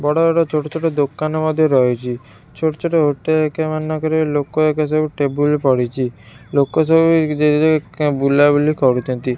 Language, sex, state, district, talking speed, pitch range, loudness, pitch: Odia, female, Odisha, Khordha, 165 wpm, 140-155 Hz, -17 LUFS, 150 Hz